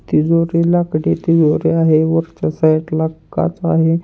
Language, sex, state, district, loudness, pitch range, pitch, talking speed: Marathi, male, Maharashtra, Pune, -15 LUFS, 155-165 Hz, 165 Hz, 120 wpm